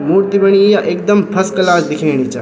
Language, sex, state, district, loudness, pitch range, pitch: Garhwali, male, Uttarakhand, Tehri Garhwal, -12 LUFS, 170-200 Hz, 190 Hz